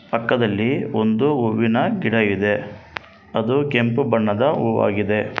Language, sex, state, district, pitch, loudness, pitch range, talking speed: Kannada, male, Karnataka, Bangalore, 110 Hz, -19 LUFS, 105-115 Hz, 100 wpm